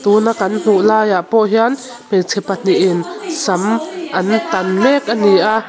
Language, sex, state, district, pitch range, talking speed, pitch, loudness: Mizo, female, Mizoram, Aizawl, 195-230 Hz, 160 wpm, 215 Hz, -14 LUFS